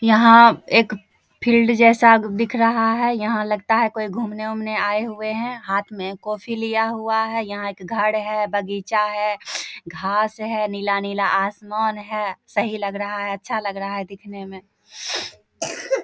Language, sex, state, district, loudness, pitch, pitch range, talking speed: Hindi, female, Bihar, Samastipur, -20 LUFS, 215 Hz, 205-225 Hz, 160 wpm